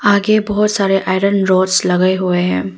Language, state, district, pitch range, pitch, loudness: Hindi, Arunachal Pradesh, Papum Pare, 185-200 Hz, 190 Hz, -14 LUFS